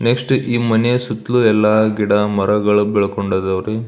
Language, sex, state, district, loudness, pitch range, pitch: Kannada, male, Karnataka, Belgaum, -16 LUFS, 105-115 Hz, 110 Hz